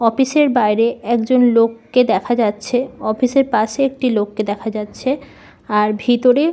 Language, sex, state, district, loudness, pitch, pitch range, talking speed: Bengali, female, West Bengal, Malda, -17 LUFS, 240 Hz, 215-255 Hz, 155 wpm